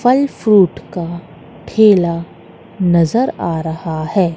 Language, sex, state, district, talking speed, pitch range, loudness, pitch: Hindi, female, Madhya Pradesh, Katni, 110 wpm, 165-210 Hz, -15 LUFS, 175 Hz